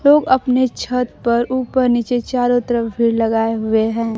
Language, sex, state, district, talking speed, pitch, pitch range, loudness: Hindi, female, Bihar, Kaimur, 170 wpm, 240 Hz, 230-250 Hz, -17 LUFS